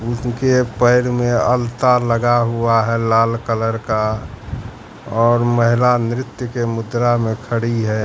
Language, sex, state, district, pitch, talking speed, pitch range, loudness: Hindi, male, Bihar, Katihar, 115 Hz, 135 wpm, 115-120 Hz, -17 LUFS